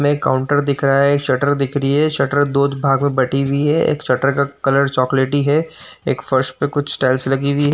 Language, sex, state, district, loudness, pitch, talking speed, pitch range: Hindi, male, Uttar Pradesh, Jyotiba Phule Nagar, -17 LUFS, 140 Hz, 240 wpm, 135-145 Hz